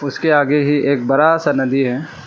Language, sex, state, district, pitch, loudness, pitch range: Hindi, male, Arunachal Pradesh, Lower Dibang Valley, 145 Hz, -15 LUFS, 135-150 Hz